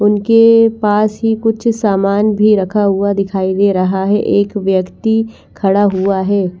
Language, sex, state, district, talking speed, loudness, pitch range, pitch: Hindi, female, Chandigarh, Chandigarh, 155 wpm, -13 LUFS, 195-220 Hz, 205 Hz